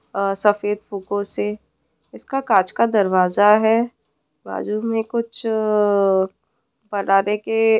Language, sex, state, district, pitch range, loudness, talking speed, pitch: Hindi, female, West Bengal, Purulia, 200-225 Hz, -19 LUFS, 130 wpm, 210 Hz